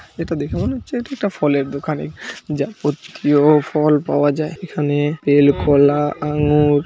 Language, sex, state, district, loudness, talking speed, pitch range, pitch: Bengali, male, West Bengal, Jhargram, -18 LUFS, 130 wpm, 145-150 Hz, 150 Hz